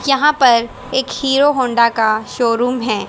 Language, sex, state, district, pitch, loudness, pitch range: Hindi, female, Haryana, Charkhi Dadri, 250 Hz, -15 LUFS, 235-270 Hz